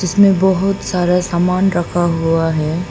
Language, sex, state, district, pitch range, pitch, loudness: Hindi, female, Arunachal Pradesh, Papum Pare, 170-190 Hz, 180 Hz, -15 LUFS